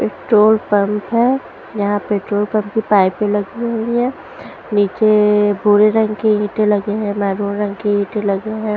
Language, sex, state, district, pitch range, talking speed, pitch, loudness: Hindi, female, Punjab, Pathankot, 205-220 Hz, 165 wpm, 210 Hz, -16 LUFS